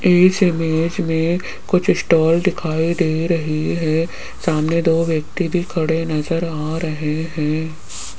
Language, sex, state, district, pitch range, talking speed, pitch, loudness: Hindi, female, Rajasthan, Jaipur, 160-170 Hz, 130 wpm, 165 Hz, -19 LUFS